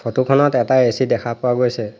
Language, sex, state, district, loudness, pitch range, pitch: Assamese, male, Assam, Hailakandi, -17 LUFS, 120-130 Hz, 125 Hz